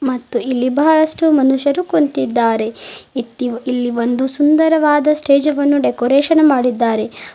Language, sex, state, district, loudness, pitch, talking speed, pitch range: Kannada, female, Karnataka, Bidar, -15 LUFS, 270 Hz, 105 wpm, 245-300 Hz